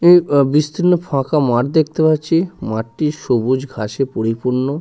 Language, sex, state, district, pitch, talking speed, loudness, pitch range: Bengali, male, West Bengal, Purulia, 145 Hz, 150 wpm, -17 LUFS, 125-160 Hz